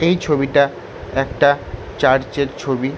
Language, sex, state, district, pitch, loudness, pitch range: Bengali, male, West Bengal, Jalpaiguri, 140 Hz, -18 LUFS, 135-145 Hz